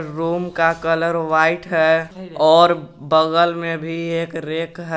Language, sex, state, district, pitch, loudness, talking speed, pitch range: Hindi, male, Jharkhand, Garhwa, 165 Hz, -18 LUFS, 145 wpm, 160-170 Hz